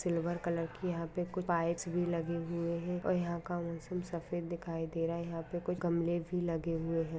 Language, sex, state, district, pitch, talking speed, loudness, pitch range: Hindi, female, Jharkhand, Sahebganj, 170 Hz, 225 wpm, -36 LUFS, 165-175 Hz